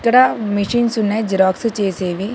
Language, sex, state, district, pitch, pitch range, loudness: Telugu, female, Telangana, Hyderabad, 210 Hz, 195-235 Hz, -17 LUFS